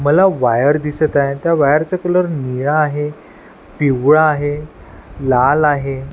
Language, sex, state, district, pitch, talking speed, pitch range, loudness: Marathi, male, Maharashtra, Washim, 145 Hz, 135 wpm, 140-155 Hz, -15 LUFS